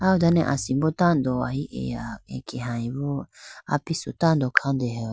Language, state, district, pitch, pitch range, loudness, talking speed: Idu Mishmi, Arunachal Pradesh, Lower Dibang Valley, 140 Hz, 125-160 Hz, -25 LUFS, 130 wpm